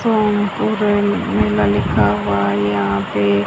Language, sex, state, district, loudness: Hindi, female, Haryana, Jhajjar, -17 LUFS